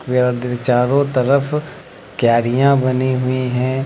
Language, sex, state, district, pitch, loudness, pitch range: Hindi, male, Uttar Pradesh, Lucknow, 130 Hz, -17 LUFS, 125-135 Hz